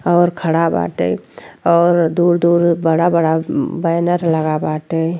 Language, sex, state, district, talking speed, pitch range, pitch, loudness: Bhojpuri, female, Uttar Pradesh, Deoria, 125 wpm, 160-170 Hz, 165 Hz, -16 LUFS